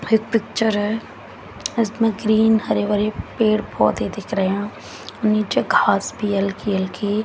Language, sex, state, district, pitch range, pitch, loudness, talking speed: Hindi, female, Haryana, Jhajjar, 205-220 Hz, 215 Hz, -20 LUFS, 130 wpm